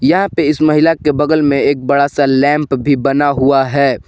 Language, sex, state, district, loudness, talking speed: Hindi, male, Jharkhand, Garhwa, -12 LUFS, 220 wpm